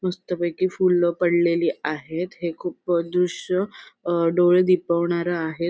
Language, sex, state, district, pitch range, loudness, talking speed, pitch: Marathi, female, Maharashtra, Sindhudurg, 170-180 Hz, -22 LUFS, 115 wpm, 175 Hz